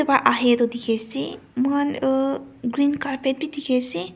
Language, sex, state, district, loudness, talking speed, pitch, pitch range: Nagamese, female, Nagaland, Kohima, -22 LUFS, 130 wpm, 265 Hz, 240-280 Hz